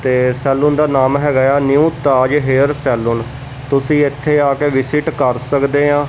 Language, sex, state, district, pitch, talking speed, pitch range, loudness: Punjabi, male, Punjab, Kapurthala, 140 Hz, 185 wpm, 130-145 Hz, -14 LUFS